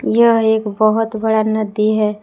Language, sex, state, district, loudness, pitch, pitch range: Hindi, female, Jharkhand, Palamu, -15 LUFS, 220 Hz, 215-220 Hz